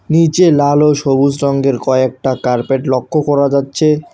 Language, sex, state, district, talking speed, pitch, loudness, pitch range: Bengali, male, West Bengal, Alipurduar, 145 wpm, 140 Hz, -13 LUFS, 130-150 Hz